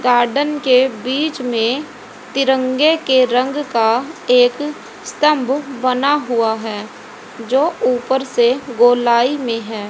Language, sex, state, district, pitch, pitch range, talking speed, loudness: Hindi, female, Haryana, Rohtak, 255 Hz, 240-280 Hz, 115 wpm, -16 LUFS